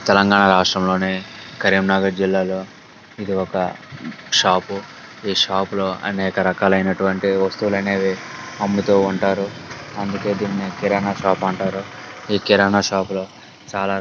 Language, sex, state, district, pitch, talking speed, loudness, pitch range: Telugu, male, Telangana, Karimnagar, 95 Hz, 120 wpm, -19 LUFS, 95-100 Hz